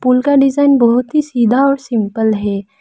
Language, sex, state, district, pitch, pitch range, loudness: Hindi, female, Arunachal Pradesh, Lower Dibang Valley, 250 Hz, 225-275 Hz, -13 LUFS